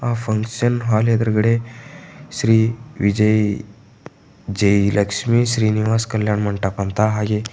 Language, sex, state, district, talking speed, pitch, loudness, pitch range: Kannada, male, Karnataka, Bidar, 95 wpm, 110 Hz, -18 LUFS, 105-115 Hz